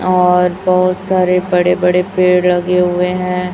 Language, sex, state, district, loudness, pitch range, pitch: Hindi, male, Chhattisgarh, Raipur, -13 LUFS, 180-185 Hz, 180 Hz